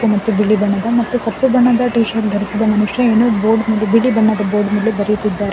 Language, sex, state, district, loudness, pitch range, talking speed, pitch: Kannada, female, Karnataka, Bangalore, -15 LUFS, 210-230 Hz, 195 wpm, 220 Hz